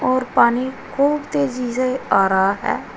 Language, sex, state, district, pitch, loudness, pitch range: Hindi, female, Uttar Pradesh, Shamli, 255 Hz, -19 LUFS, 195-260 Hz